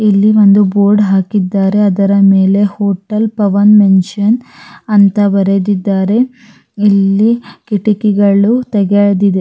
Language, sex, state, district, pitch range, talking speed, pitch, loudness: Kannada, female, Karnataka, Raichur, 195-210 Hz, 90 wpm, 205 Hz, -11 LUFS